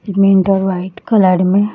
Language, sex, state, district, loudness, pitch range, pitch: Hindi, female, Jharkhand, Sahebganj, -13 LUFS, 185-200 Hz, 195 Hz